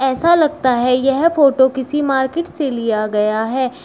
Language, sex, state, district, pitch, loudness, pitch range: Hindi, female, Uttar Pradesh, Shamli, 265 Hz, -16 LUFS, 250-290 Hz